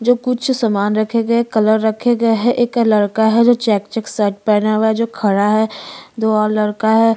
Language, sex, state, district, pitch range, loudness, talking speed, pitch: Hindi, female, Chhattisgarh, Bastar, 215-230 Hz, -15 LUFS, 235 wpm, 220 Hz